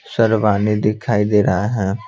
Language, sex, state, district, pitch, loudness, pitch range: Hindi, male, Bihar, Patna, 105 Hz, -17 LUFS, 105-110 Hz